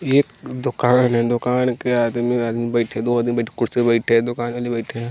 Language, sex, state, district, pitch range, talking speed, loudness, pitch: Hindi, male, Bihar, West Champaran, 115-125 Hz, 235 wpm, -20 LUFS, 120 Hz